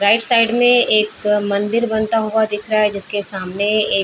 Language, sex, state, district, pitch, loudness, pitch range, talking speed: Hindi, female, Bihar, Saran, 215 Hz, -16 LUFS, 205-225 Hz, 205 wpm